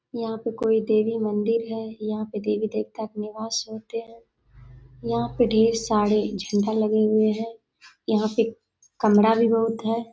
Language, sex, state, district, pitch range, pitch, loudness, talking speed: Hindi, female, Bihar, Saharsa, 215-225 Hz, 220 Hz, -24 LUFS, 160 wpm